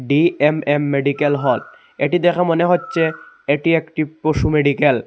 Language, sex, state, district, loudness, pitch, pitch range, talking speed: Bengali, male, Assam, Hailakandi, -17 LUFS, 155 Hz, 145-165 Hz, 140 wpm